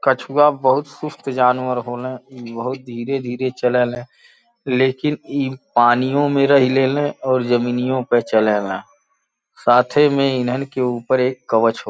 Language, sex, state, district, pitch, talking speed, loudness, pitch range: Bhojpuri, male, Uttar Pradesh, Gorakhpur, 130 Hz, 140 wpm, -18 LUFS, 120-135 Hz